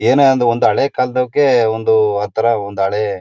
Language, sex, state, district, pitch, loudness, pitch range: Kannada, male, Karnataka, Mysore, 115 Hz, -15 LUFS, 105-125 Hz